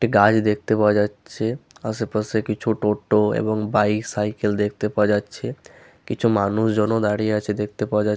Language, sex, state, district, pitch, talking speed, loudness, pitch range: Bengali, male, West Bengal, Malda, 105 Hz, 155 wpm, -21 LUFS, 105-110 Hz